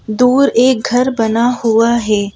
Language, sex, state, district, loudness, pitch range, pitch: Hindi, female, Madhya Pradesh, Bhopal, -12 LUFS, 225-250 Hz, 235 Hz